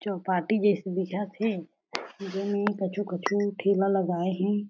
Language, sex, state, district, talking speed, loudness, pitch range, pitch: Chhattisgarhi, female, Chhattisgarh, Jashpur, 140 wpm, -28 LUFS, 185-205 Hz, 195 Hz